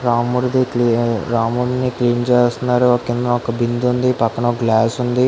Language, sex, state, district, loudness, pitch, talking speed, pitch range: Telugu, female, Andhra Pradesh, Guntur, -17 LUFS, 120 Hz, 135 wpm, 120-125 Hz